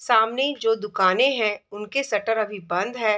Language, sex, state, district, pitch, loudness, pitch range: Hindi, female, Bihar, East Champaran, 215 Hz, -22 LUFS, 210-240 Hz